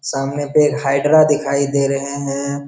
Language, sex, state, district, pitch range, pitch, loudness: Hindi, male, Bihar, Jamui, 140-145 Hz, 140 Hz, -16 LUFS